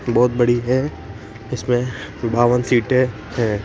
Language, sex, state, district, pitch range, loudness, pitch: Hindi, male, Rajasthan, Jaipur, 115-125 Hz, -19 LUFS, 120 Hz